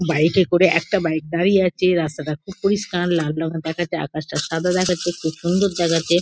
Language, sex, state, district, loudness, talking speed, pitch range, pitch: Bengali, female, West Bengal, Kolkata, -20 LUFS, 185 wpm, 160-185 Hz, 170 Hz